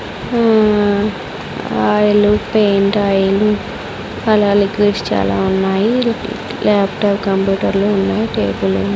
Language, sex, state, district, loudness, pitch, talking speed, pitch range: Telugu, female, Andhra Pradesh, Sri Satya Sai, -15 LUFS, 205 Hz, 80 wpm, 195-210 Hz